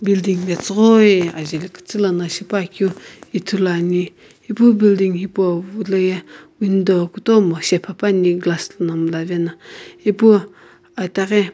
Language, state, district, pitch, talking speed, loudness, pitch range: Sumi, Nagaland, Kohima, 190 Hz, 115 wpm, -17 LUFS, 175-205 Hz